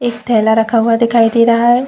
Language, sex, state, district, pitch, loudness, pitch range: Hindi, female, Chhattisgarh, Bilaspur, 230 Hz, -12 LUFS, 225-240 Hz